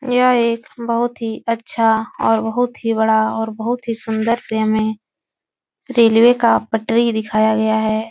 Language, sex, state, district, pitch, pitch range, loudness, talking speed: Hindi, female, Uttar Pradesh, Etah, 225 Hz, 220-235 Hz, -17 LUFS, 155 wpm